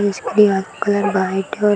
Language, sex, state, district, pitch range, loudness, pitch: Hindi, female, Bihar, Gaya, 190-205 Hz, -17 LUFS, 205 Hz